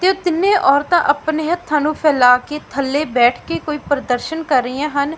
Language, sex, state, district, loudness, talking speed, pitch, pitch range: Punjabi, female, Punjab, Fazilka, -16 LUFS, 195 wpm, 300 Hz, 275-325 Hz